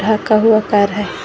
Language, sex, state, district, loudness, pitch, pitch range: Hindi, female, Jharkhand, Garhwa, -14 LUFS, 215 Hz, 205-220 Hz